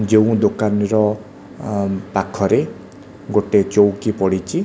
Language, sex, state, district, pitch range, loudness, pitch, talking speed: Odia, male, Odisha, Khordha, 100-110 Hz, -18 LUFS, 105 Hz, 90 wpm